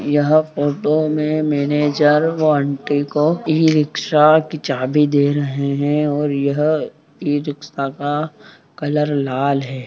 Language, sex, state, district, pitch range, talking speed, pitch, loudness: Hindi, male, Bihar, Saharsa, 140-155 Hz, 130 wpm, 150 Hz, -17 LUFS